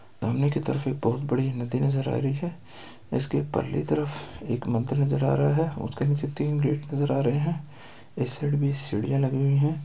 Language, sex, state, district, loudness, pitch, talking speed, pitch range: Hindi, male, Uttar Pradesh, Etah, -26 LUFS, 135 Hz, 215 wpm, 120-145 Hz